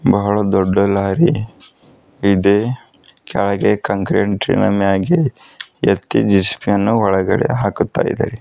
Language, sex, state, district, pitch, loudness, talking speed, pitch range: Kannada, male, Karnataka, Bidar, 100 Hz, -16 LUFS, 95 wpm, 100-115 Hz